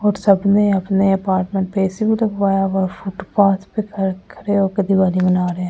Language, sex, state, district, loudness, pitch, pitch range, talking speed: Hindi, female, Delhi, New Delhi, -17 LUFS, 195 Hz, 190-200 Hz, 190 wpm